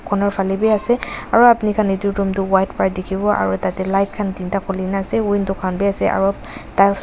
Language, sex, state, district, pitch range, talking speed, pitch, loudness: Nagamese, female, Nagaland, Dimapur, 190-205 Hz, 230 wpm, 195 Hz, -18 LUFS